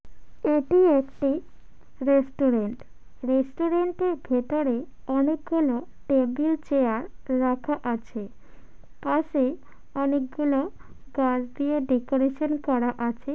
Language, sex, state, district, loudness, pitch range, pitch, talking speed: Bengali, female, West Bengal, Malda, -25 LUFS, 255-300 Hz, 275 Hz, 85 wpm